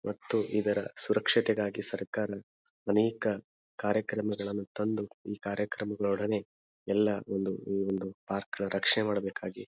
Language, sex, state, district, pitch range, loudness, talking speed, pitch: Kannada, male, Karnataka, Bijapur, 100-105 Hz, -32 LUFS, 120 wpm, 100 Hz